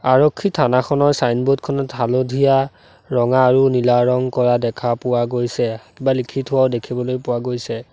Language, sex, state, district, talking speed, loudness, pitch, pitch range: Assamese, male, Assam, Sonitpur, 145 wpm, -18 LUFS, 125 Hz, 120-135 Hz